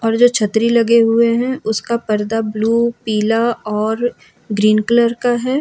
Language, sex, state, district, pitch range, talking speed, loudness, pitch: Hindi, female, Jharkhand, Ranchi, 215-235 Hz, 160 wpm, -16 LUFS, 230 Hz